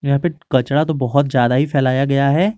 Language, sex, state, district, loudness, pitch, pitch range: Hindi, male, Jharkhand, Garhwa, -17 LUFS, 140 Hz, 130-150 Hz